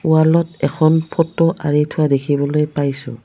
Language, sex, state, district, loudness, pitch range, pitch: Assamese, female, Assam, Kamrup Metropolitan, -17 LUFS, 145-160 Hz, 150 Hz